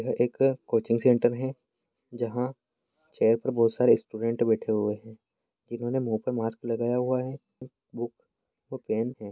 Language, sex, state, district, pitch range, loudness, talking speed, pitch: Hindi, male, Bihar, Bhagalpur, 115-125 Hz, -27 LUFS, 160 wpm, 120 Hz